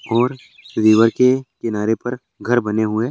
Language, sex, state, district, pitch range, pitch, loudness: Hindi, male, Uttarakhand, Tehri Garhwal, 110-125 Hz, 115 Hz, -18 LUFS